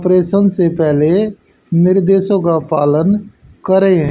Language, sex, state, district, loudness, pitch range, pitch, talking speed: Hindi, male, Haryana, Charkhi Dadri, -13 LUFS, 165-195 Hz, 185 Hz, 100 wpm